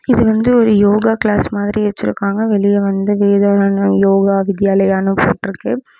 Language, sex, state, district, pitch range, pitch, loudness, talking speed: Tamil, female, Tamil Nadu, Namakkal, 195-215 Hz, 200 Hz, -14 LUFS, 130 wpm